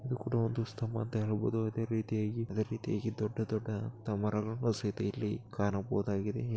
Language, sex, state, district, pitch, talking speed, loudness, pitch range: Kannada, male, Karnataka, Bellary, 110 Hz, 120 wpm, -35 LUFS, 105-115 Hz